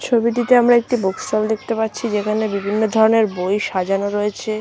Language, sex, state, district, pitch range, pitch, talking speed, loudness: Bengali, female, West Bengal, Malda, 205-230 Hz, 215 Hz, 170 wpm, -18 LUFS